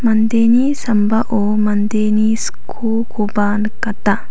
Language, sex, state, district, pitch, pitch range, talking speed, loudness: Garo, female, Meghalaya, South Garo Hills, 215 Hz, 210-230 Hz, 70 wpm, -16 LUFS